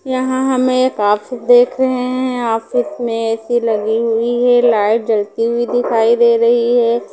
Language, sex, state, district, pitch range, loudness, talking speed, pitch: Hindi, female, Punjab, Pathankot, 225-250 Hz, -14 LUFS, 170 wpm, 240 Hz